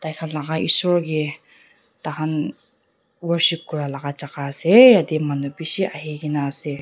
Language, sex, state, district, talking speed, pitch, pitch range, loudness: Nagamese, female, Nagaland, Dimapur, 125 wpm, 155 Hz, 145-170 Hz, -20 LUFS